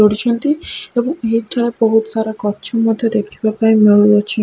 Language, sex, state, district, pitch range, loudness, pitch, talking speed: Odia, female, Odisha, Khordha, 210-235 Hz, -15 LUFS, 225 Hz, 110 wpm